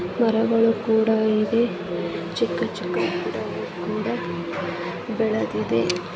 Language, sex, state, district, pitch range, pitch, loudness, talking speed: Kannada, female, Karnataka, Gulbarga, 180-225 Hz, 220 Hz, -23 LUFS, 80 wpm